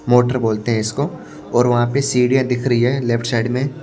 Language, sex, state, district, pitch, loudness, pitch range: Hindi, male, Maharashtra, Washim, 125 Hz, -18 LUFS, 120-130 Hz